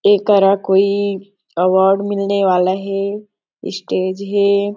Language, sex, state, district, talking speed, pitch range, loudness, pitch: Chhattisgarhi, female, Chhattisgarh, Sarguja, 100 wpm, 190-200 Hz, -16 LUFS, 200 Hz